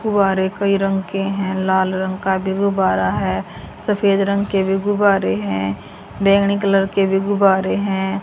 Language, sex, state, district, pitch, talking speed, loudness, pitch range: Hindi, female, Haryana, Jhajjar, 195 Hz, 170 wpm, -18 LUFS, 190-200 Hz